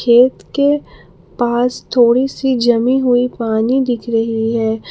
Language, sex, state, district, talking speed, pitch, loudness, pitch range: Hindi, female, Jharkhand, Palamu, 135 wpm, 245 Hz, -15 LUFS, 230-255 Hz